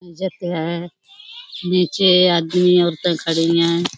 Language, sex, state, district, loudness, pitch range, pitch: Hindi, female, Uttar Pradesh, Budaun, -17 LUFS, 170-185 Hz, 175 Hz